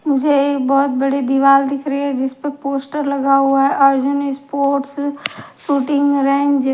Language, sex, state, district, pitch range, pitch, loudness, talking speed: Hindi, female, Haryana, Charkhi Dadri, 275-285 Hz, 275 Hz, -16 LUFS, 170 wpm